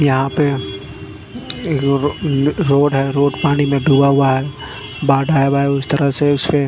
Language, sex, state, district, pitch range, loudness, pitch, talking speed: Hindi, male, Punjab, Fazilka, 135-145 Hz, -16 LUFS, 140 Hz, 160 wpm